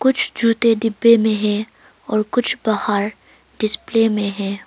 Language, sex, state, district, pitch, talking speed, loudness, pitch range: Hindi, female, Arunachal Pradesh, Longding, 220 Hz, 140 wpm, -18 LUFS, 210-230 Hz